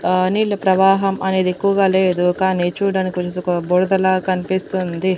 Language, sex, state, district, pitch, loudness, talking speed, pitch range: Telugu, female, Andhra Pradesh, Annamaya, 185 Hz, -17 LUFS, 115 wpm, 180-190 Hz